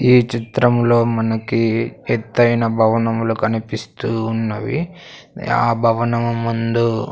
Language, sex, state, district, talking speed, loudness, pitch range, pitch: Telugu, male, Andhra Pradesh, Sri Satya Sai, 85 wpm, -18 LUFS, 115-120 Hz, 115 Hz